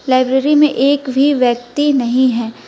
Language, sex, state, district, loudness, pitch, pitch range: Hindi, female, West Bengal, Alipurduar, -14 LUFS, 260 Hz, 250-285 Hz